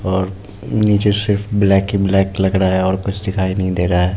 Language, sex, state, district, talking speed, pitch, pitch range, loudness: Hindi, male, Bihar, Muzaffarpur, 230 wpm, 95 Hz, 95-100 Hz, -16 LUFS